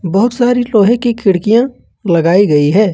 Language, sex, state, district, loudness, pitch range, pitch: Hindi, male, Jharkhand, Ranchi, -12 LUFS, 185-240 Hz, 210 Hz